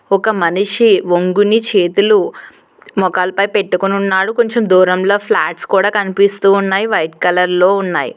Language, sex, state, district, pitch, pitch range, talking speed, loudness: Telugu, female, Telangana, Hyderabad, 195 Hz, 185-215 Hz, 115 wpm, -13 LUFS